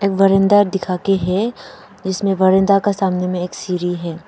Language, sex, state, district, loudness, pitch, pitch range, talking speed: Hindi, female, Arunachal Pradesh, Papum Pare, -17 LUFS, 195 Hz, 180-200 Hz, 180 wpm